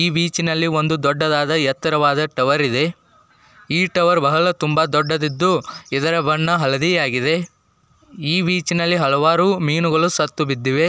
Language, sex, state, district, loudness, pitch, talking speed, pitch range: Kannada, male, Karnataka, Dakshina Kannada, -18 LUFS, 160 Hz, 115 wpm, 150-170 Hz